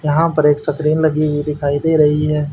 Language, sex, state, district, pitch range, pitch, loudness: Hindi, male, Haryana, Rohtak, 150-155 Hz, 150 Hz, -16 LUFS